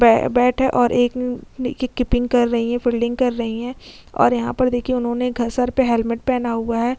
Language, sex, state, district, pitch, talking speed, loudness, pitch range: Hindi, female, Chhattisgarh, Sukma, 245 Hz, 215 wpm, -19 LUFS, 235-250 Hz